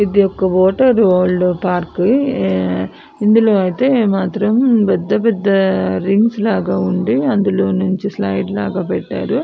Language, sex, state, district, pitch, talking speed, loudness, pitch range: Telugu, female, Andhra Pradesh, Anantapur, 195 Hz, 120 wpm, -15 LUFS, 185-225 Hz